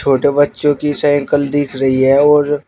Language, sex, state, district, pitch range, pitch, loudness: Hindi, male, Uttar Pradesh, Shamli, 140-145 Hz, 145 Hz, -13 LUFS